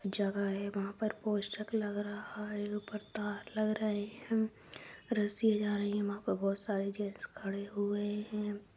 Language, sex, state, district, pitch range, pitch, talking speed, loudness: Hindi, female, Bihar, Jahanabad, 205-210 Hz, 205 Hz, 170 wpm, -36 LUFS